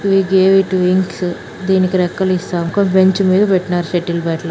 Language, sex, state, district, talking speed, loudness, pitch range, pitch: Telugu, female, Andhra Pradesh, Anantapur, 185 wpm, -15 LUFS, 175-190 Hz, 185 Hz